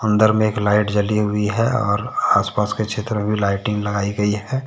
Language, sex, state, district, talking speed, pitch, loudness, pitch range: Hindi, male, Jharkhand, Deoghar, 220 wpm, 105 Hz, -19 LUFS, 105-110 Hz